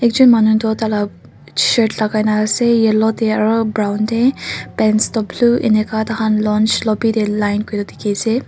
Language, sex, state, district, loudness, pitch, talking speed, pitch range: Nagamese, female, Nagaland, Kohima, -16 LUFS, 220 Hz, 175 wpm, 215-225 Hz